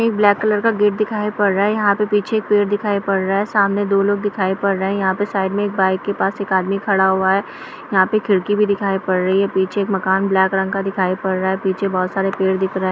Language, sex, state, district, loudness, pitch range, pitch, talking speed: Hindi, female, Bihar, Bhagalpur, -18 LUFS, 190-205 Hz, 195 Hz, 290 wpm